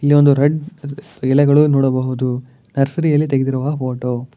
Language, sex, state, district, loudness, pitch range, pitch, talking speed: Kannada, male, Karnataka, Bangalore, -16 LUFS, 130-145 Hz, 135 Hz, 150 wpm